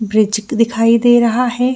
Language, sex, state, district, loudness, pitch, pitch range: Hindi, female, Jharkhand, Sahebganj, -13 LUFS, 235 Hz, 220-245 Hz